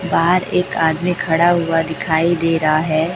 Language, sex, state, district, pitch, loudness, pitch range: Hindi, female, Chhattisgarh, Raipur, 165 Hz, -16 LUFS, 160-175 Hz